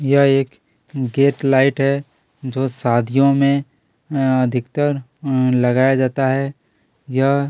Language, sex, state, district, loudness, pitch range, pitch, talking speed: Hindi, male, Chhattisgarh, Kabirdham, -18 LUFS, 130-140 Hz, 135 Hz, 130 wpm